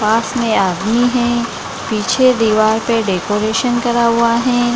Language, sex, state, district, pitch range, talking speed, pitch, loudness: Hindi, female, Bihar, Gaya, 215-240 Hz, 150 wpm, 230 Hz, -15 LUFS